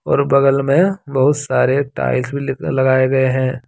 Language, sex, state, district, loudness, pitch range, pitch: Hindi, male, Jharkhand, Deoghar, -16 LUFS, 130-140 Hz, 135 Hz